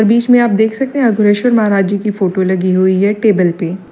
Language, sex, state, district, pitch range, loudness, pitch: Hindi, female, Uttar Pradesh, Lalitpur, 190-225 Hz, -12 LUFS, 205 Hz